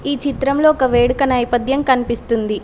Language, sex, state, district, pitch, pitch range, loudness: Telugu, female, Telangana, Mahabubabad, 260 Hz, 240-275 Hz, -16 LUFS